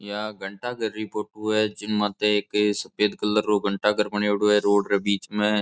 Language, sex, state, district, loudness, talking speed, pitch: Marwari, male, Rajasthan, Nagaur, -24 LUFS, 200 wpm, 105 Hz